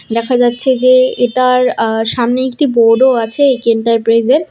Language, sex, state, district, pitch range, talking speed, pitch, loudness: Bengali, female, West Bengal, Alipurduar, 230-255 Hz, 175 wpm, 245 Hz, -12 LUFS